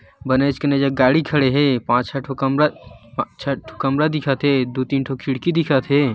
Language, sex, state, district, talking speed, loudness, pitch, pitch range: Hindi, male, Chhattisgarh, Bilaspur, 225 wpm, -19 LUFS, 135 Hz, 130-145 Hz